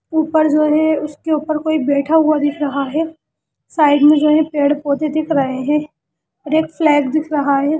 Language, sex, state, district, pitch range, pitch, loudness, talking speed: Hindi, female, Bihar, Gaya, 290-310 Hz, 300 Hz, -16 LUFS, 175 wpm